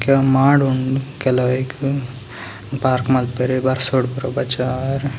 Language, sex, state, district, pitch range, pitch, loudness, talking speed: Tulu, male, Karnataka, Dakshina Kannada, 125-135 Hz, 130 Hz, -19 LUFS, 80 wpm